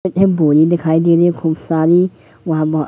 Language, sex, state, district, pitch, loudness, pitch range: Hindi, male, Madhya Pradesh, Katni, 165 Hz, -14 LUFS, 160-175 Hz